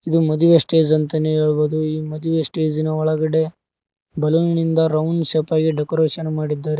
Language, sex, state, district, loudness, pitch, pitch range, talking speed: Kannada, male, Karnataka, Koppal, -17 LUFS, 155 Hz, 155-160 Hz, 125 wpm